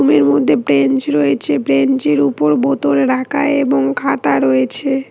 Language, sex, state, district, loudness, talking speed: Bengali, female, West Bengal, Cooch Behar, -14 LUFS, 140 wpm